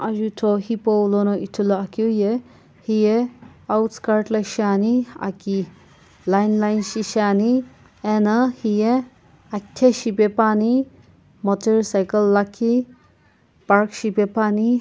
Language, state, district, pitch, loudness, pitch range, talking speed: Sumi, Nagaland, Kohima, 215 Hz, -20 LUFS, 205-225 Hz, 85 wpm